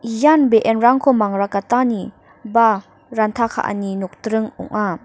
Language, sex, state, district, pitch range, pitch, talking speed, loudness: Garo, female, Meghalaya, North Garo Hills, 200-240 Hz, 225 Hz, 95 wpm, -17 LUFS